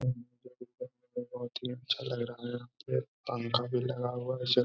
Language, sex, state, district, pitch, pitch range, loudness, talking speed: Hindi, male, Bihar, Gaya, 125 Hz, 120-130 Hz, -35 LUFS, 170 wpm